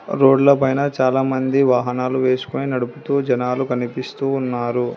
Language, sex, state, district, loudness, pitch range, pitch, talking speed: Telugu, female, Telangana, Hyderabad, -19 LUFS, 125-135 Hz, 130 Hz, 110 wpm